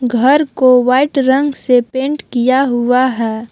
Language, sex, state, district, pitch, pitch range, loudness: Hindi, female, Jharkhand, Palamu, 255 Hz, 245-270 Hz, -13 LUFS